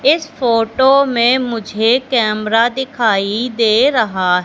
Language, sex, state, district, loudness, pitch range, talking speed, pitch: Hindi, female, Madhya Pradesh, Katni, -14 LUFS, 220-260 Hz, 110 wpm, 235 Hz